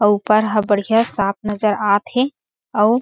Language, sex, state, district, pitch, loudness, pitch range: Chhattisgarhi, female, Chhattisgarh, Sarguja, 210 Hz, -18 LUFS, 205-225 Hz